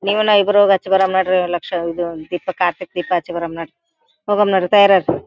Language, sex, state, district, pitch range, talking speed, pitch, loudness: Kannada, female, Karnataka, Gulbarga, 175-200 Hz, 170 wpm, 185 Hz, -16 LUFS